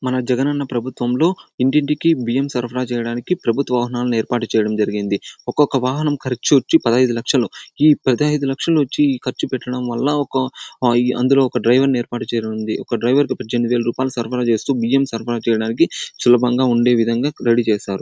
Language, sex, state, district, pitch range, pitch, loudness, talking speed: Telugu, male, Andhra Pradesh, Anantapur, 120-135 Hz, 125 Hz, -18 LUFS, 155 wpm